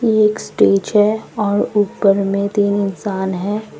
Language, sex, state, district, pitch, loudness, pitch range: Hindi, female, Assam, Sonitpur, 205 Hz, -17 LUFS, 195-210 Hz